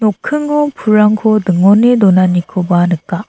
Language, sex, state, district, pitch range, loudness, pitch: Garo, female, Meghalaya, South Garo Hills, 180-220 Hz, -11 LUFS, 210 Hz